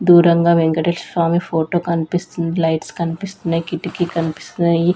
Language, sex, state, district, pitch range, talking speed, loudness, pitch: Telugu, female, Andhra Pradesh, Sri Satya Sai, 165-175 Hz, 110 wpm, -18 LUFS, 170 Hz